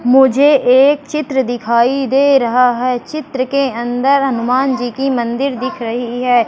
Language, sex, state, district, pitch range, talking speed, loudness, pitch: Hindi, female, Madhya Pradesh, Katni, 245-275 Hz, 155 wpm, -14 LUFS, 260 Hz